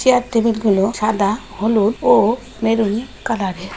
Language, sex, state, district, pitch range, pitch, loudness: Bengali, female, West Bengal, Jalpaiguri, 210-230 Hz, 220 Hz, -17 LUFS